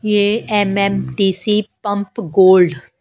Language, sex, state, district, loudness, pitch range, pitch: Hindi, female, Haryana, Charkhi Dadri, -15 LUFS, 190-210 Hz, 200 Hz